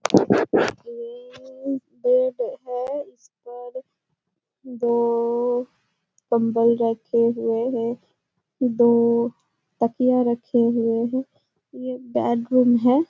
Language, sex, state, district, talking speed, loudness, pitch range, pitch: Hindi, female, Bihar, Jahanabad, 80 wpm, -22 LUFS, 230-255 Hz, 240 Hz